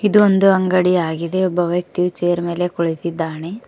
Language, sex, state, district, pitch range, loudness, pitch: Kannada, female, Karnataka, Koppal, 170-185 Hz, -18 LUFS, 180 Hz